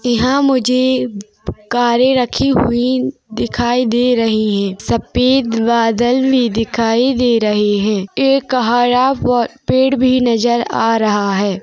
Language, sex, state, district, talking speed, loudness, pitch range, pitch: Hindi, female, Chhattisgarh, Rajnandgaon, 125 wpm, -14 LUFS, 225-255 Hz, 240 Hz